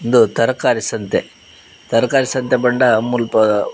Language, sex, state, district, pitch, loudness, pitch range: Tulu, male, Karnataka, Dakshina Kannada, 125 Hz, -16 LUFS, 110-130 Hz